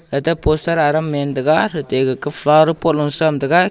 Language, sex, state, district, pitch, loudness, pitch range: Wancho, male, Arunachal Pradesh, Longding, 155 Hz, -16 LUFS, 145-165 Hz